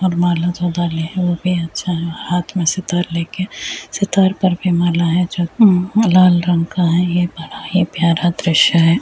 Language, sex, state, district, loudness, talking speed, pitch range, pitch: Hindi, female, Bihar, Muzaffarpur, -16 LUFS, 195 wpm, 170-185 Hz, 175 Hz